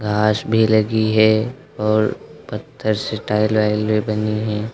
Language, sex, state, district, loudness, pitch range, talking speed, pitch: Hindi, male, Uttar Pradesh, Lucknow, -18 LUFS, 105-110 Hz, 150 wpm, 110 Hz